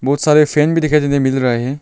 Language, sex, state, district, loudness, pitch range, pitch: Hindi, male, Arunachal Pradesh, Longding, -14 LUFS, 135-150 Hz, 145 Hz